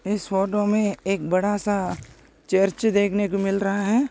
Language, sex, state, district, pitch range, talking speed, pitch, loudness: Hindi, male, Maharashtra, Sindhudurg, 195-205 Hz, 160 wpm, 200 Hz, -23 LUFS